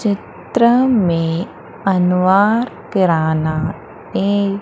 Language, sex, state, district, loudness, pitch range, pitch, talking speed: Hindi, female, Madhya Pradesh, Umaria, -16 LUFS, 165-215 Hz, 195 Hz, 65 wpm